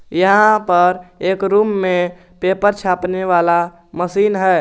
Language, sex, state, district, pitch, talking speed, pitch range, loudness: Hindi, male, Jharkhand, Garhwa, 185 Hz, 130 wpm, 180-195 Hz, -16 LUFS